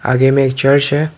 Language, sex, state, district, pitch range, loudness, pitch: Hindi, male, Tripura, Dhalai, 135-145 Hz, -13 LUFS, 135 Hz